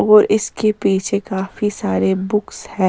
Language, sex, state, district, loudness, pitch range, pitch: Hindi, female, Chandigarh, Chandigarh, -18 LUFS, 190-210 Hz, 200 Hz